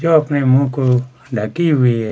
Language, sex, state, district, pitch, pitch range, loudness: Hindi, male, Chhattisgarh, Kabirdham, 130 Hz, 125-145 Hz, -16 LUFS